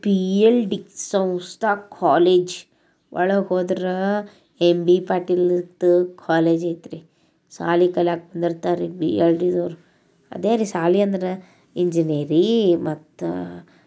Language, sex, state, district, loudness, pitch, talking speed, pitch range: Kannada, female, Karnataka, Bijapur, -20 LUFS, 180 Hz, 45 wpm, 170-190 Hz